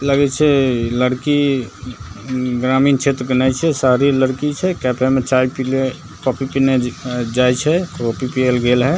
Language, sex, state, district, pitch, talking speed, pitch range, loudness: Maithili, male, Bihar, Begusarai, 130 Hz, 175 wpm, 125-140 Hz, -17 LUFS